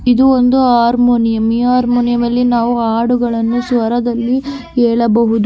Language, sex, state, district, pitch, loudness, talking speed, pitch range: Kannada, female, Karnataka, Gulbarga, 240 Hz, -13 LUFS, 90 wpm, 235-245 Hz